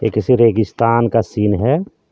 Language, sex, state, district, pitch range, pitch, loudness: Hindi, male, Jharkhand, Deoghar, 110-120 Hz, 115 Hz, -15 LUFS